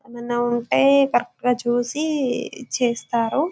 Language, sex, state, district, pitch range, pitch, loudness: Telugu, female, Telangana, Karimnagar, 240-275 Hz, 245 Hz, -21 LUFS